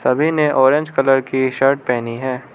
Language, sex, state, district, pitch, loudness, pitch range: Hindi, male, Arunachal Pradesh, Lower Dibang Valley, 135 Hz, -16 LUFS, 130-140 Hz